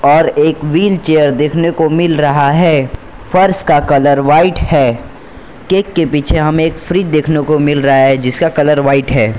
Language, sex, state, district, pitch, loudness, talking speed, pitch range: Hindi, male, Gujarat, Valsad, 150 Hz, -11 LUFS, 180 wpm, 140-165 Hz